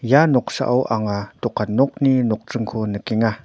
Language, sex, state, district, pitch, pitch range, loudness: Garo, male, Meghalaya, North Garo Hills, 115 Hz, 105-130 Hz, -20 LUFS